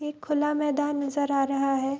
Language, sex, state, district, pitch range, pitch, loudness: Hindi, female, Bihar, Madhepura, 275-295 Hz, 290 Hz, -26 LUFS